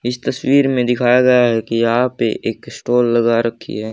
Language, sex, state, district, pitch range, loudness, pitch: Hindi, male, Haryana, Charkhi Dadri, 115-125 Hz, -16 LUFS, 120 Hz